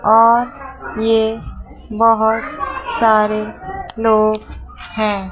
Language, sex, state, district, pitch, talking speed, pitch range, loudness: Hindi, female, Chandigarh, Chandigarh, 225 Hz, 70 wpm, 215-245 Hz, -16 LUFS